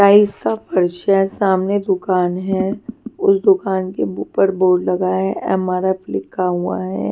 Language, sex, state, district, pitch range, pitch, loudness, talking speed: Hindi, female, Punjab, Pathankot, 180-200 Hz, 190 Hz, -17 LUFS, 145 wpm